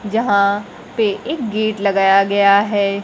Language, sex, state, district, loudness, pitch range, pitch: Hindi, female, Bihar, Kaimur, -16 LUFS, 200-220 Hz, 205 Hz